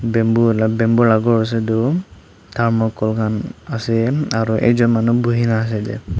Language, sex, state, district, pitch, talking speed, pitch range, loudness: Nagamese, male, Nagaland, Dimapur, 115 Hz, 165 wpm, 110-115 Hz, -17 LUFS